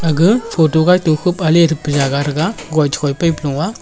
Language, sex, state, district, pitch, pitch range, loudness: Wancho, male, Arunachal Pradesh, Longding, 160 Hz, 145-175 Hz, -14 LUFS